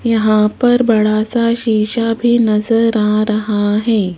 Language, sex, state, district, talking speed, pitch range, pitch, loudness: Hindi, female, Rajasthan, Jaipur, 145 wpm, 215-230 Hz, 220 Hz, -14 LUFS